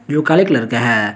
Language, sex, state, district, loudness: Hindi, male, Jharkhand, Garhwa, -14 LUFS